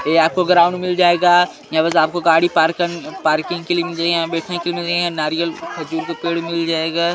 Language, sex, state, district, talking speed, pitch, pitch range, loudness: Hindi, male, Chhattisgarh, Sarguja, 200 wpm, 170 Hz, 165-175 Hz, -17 LUFS